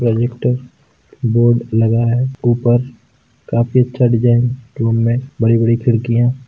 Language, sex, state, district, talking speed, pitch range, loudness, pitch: Hindi, male, Uttar Pradesh, Varanasi, 110 wpm, 115-125 Hz, -15 LUFS, 120 Hz